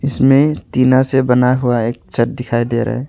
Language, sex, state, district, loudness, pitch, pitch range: Hindi, male, Arunachal Pradesh, Longding, -14 LUFS, 125 Hz, 120-130 Hz